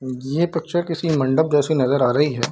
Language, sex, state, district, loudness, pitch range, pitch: Hindi, male, Bihar, Samastipur, -20 LUFS, 130-165 Hz, 150 Hz